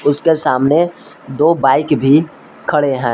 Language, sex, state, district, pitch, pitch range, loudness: Hindi, male, Jharkhand, Palamu, 145 Hz, 135-155 Hz, -14 LUFS